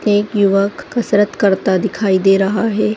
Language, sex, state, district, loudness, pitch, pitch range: Hindi, female, Chhattisgarh, Raigarh, -15 LUFS, 205 Hz, 195-215 Hz